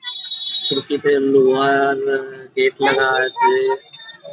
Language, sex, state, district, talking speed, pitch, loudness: Bengali, male, West Bengal, Jhargram, 70 wpm, 140 Hz, -16 LUFS